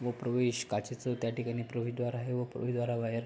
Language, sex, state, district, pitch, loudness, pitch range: Marathi, male, Maharashtra, Pune, 120 Hz, -34 LUFS, 120-125 Hz